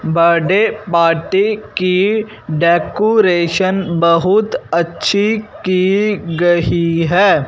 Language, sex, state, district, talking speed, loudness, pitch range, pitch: Hindi, male, Punjab, Fazilka, 80 wpm, -14 LUFS, 170-205 Hz, 185 Hz